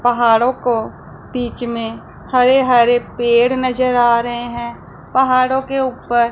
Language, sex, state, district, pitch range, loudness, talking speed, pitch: Hindi, female, Punjab, Pathankot, 235-255 Hz, -16 LUFS, 135 wpm, 245 Hz